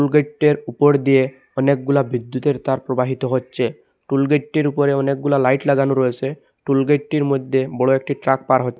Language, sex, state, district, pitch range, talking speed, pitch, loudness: Bengali, male, Assam, Hailakandi, 130-145 Hz, 135 wpm, 135 Hz, -18 LUFS